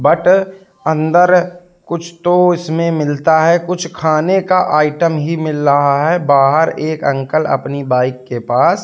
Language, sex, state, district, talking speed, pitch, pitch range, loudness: Hindi, male, Madhya Pradesh, Katni, 150 wpm, 160 Hz, 145-175 Hz, -14 LUFS